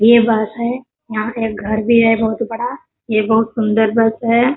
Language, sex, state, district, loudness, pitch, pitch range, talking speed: Hindi, female, Bihar, Bhagalpur, -16 LUFS, 225 Hz, 220-235 Hz, 210 wpm